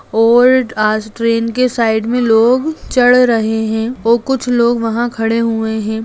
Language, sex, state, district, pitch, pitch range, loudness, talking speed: Hindi, female, Bihar, Jamui, 230 Hz, 225-245 Hz, -13 LUFS, 170 wpm